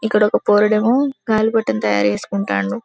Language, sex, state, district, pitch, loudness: Telugu, female, Telangana, Karimnagar, 210 Hz, -17 LUFS